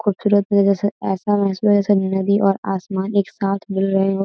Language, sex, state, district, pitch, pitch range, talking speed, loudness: Hindi, female, Uttar Pradesh, Gorakhpur, 200 Hz, 195-205 Hz, 210 wpm, -18 LUFS